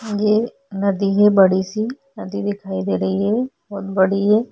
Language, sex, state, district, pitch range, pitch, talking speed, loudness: Hindi, female, Chhattisgarh, Korba, 190-215 Hz, 200 Hz, 160 wpm, -19 LUFS